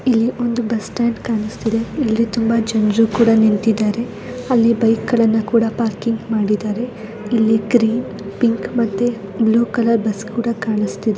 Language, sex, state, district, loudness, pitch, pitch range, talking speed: Kannada, female, Karnataka, Mysore, -17 LUFS, 225 Hz, 220-235 Hz, 145 wpm